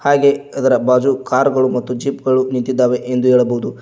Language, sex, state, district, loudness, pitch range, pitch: Kannada, male, Karnataka, Koppal, -15 LUFS, 125-135 Hz, 130 Hz